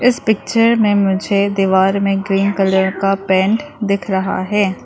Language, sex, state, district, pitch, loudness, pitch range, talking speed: Hindi, female, Arunachal Pradesh, Lower Dibang Valley, 195 Hz, -15 LUFS, 190-210 Hz, 160 wpm